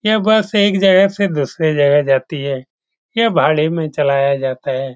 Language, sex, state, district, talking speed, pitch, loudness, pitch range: Hindi, male, Bihar, Saran, 180 wpm, 155 Hz, -15 LUFS, 140-200 Hz